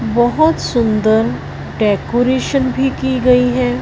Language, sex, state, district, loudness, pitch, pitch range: Hindi, female, Punjab, Fazilka, -15 LUFS, 250 Hz, 230-260 Hz